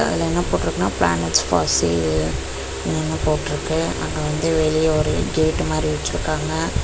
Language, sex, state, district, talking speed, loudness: Tamil, female, Tamil Nadu, Chennai, 130 wpm, -20 LUFS